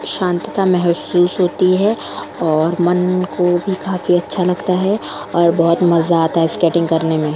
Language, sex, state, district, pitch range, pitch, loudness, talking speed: Hindi, female, Goa, North and South Goa, 170-185 Hz, 175 Hz, -15 LUFS, 170 wpm